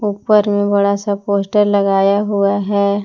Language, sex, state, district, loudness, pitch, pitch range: Hindi, female, Jharkhand, Palamu, -15 LUFS, 200 Hz, 200-205 Hz